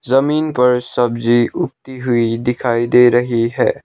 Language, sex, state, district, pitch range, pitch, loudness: Hindi, male, Sikkim, Gangtok, 120-125 Hz, 125 Hz, -15 LUFS